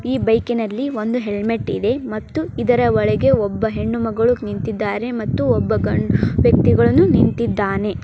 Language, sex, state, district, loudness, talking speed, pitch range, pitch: Kannada, male, Karnataka, Dharwad, -18 LUFS, 135 wpm, 210-240 Hz, 225 Hz